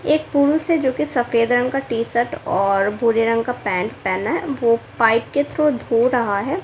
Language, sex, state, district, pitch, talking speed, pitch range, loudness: Hindi, female, Bihar, Kaimur, 245 Hz, 215 wpm, 230-285 Hz, -19 LUFS